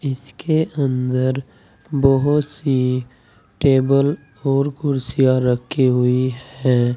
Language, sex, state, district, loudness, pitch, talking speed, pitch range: Hindi, male, Uttar Pradesh, Saharanpur, -19 LUFS, 130 Hz, 85 wpm, 125-140 Hz